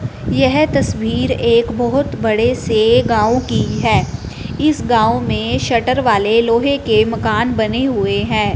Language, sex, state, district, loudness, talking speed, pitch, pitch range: Hindi, female, Punjab, Fazilka, -15 LUFS, 140 wpm, 240 Hz, 230-275 Hz